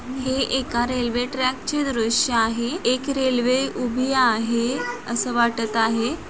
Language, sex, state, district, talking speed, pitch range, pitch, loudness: Marathi, female, Maharashtra, Solapur, 135 wpm, 235-260 Hz, 245 Hz, -22 LUFS